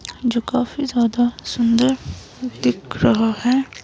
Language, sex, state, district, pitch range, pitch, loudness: Hindi, female, Himachal Pradesh, Shimla, 235-255 Hz, 240 Hz, -19 LUFS